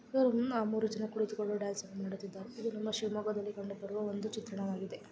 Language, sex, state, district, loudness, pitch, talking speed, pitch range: Kannada, female, Karnataka, Shimoga, -37 LUFS, 210 Hz, 140 wpm, 200-220 Hz